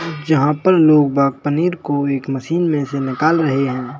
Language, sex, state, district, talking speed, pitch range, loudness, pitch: Hindi, male, Madhya Pradesh, Bhopal, 195 wpm, 140-160 Hz, -16 LUFS, 145 Hz